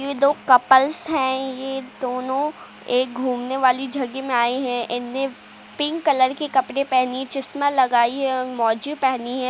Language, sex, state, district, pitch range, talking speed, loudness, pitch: Hindi, female, Uttar Pradesh, Jalaun, 250-275 Hz, 165 wpm, -21 LUFS, 260 Hz